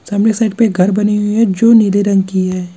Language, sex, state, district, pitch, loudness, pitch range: Hindi, male, Chhattisgarh, Bilaspur, 205 Hz, -12 LUFS, 190-220 Hz